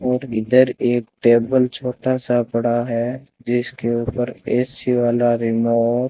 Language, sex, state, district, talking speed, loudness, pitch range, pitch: Hindi, male, Rajasthan, Bikaner, 135 wpm, -19 LUFS, 120-125 Hz, 120 Hz